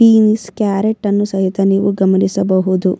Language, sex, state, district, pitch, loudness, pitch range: Kannada, female, Karnataka, Bellary, 195 Hz, -14 LUFS, 190-210 Hz